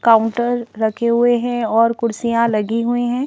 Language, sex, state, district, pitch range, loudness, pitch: Hindi, female, Madhya Pradesh, Bhopal, 230-240 Hz, -17 LUFS, 235 Hz